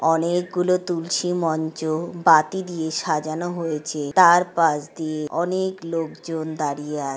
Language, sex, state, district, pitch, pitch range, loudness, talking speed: Bengali, female, West Bengal, Jhargram, 165 Hz, 155-175 Hz, -22 LUFS, 125 wpm